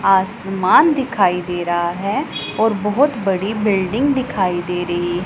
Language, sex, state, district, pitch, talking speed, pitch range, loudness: Hindi, female, Punjab, Pathankot, 195 Hz, 135 wpm, 180-225 Hz, -18 LUFS